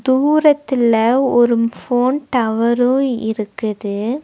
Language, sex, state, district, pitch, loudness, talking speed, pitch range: Tamil, female, Tamil Nadu, Nilgiris, 240 Hz, -16 LUFS, 70 wpm, 225-265 Hz